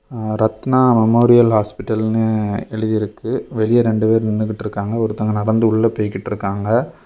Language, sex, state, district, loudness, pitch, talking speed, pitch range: Tamil, male, Tamil Nadu, Kanyakumari, -17 LUFS, 110 Hz, 135 wpm, 105-115 Hz